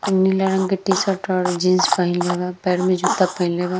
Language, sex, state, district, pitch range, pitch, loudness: Bhojpuri, female, Uttar Pradesh, Gorakhpur, 180-190 Hz, 185 Hz, -19 LUFS